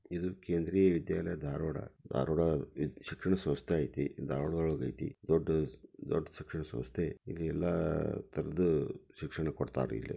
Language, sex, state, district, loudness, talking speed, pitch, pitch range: Kannada, male, Karnataka, Dharwad, -35 LUFS, 110 wpm, 80 Hz, 75-85 Hz